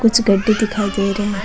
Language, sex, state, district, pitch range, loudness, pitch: Rajasthani, female, Rajasthan, Nagaur, 200-220 Hz, -17 LUFS, 205 Hz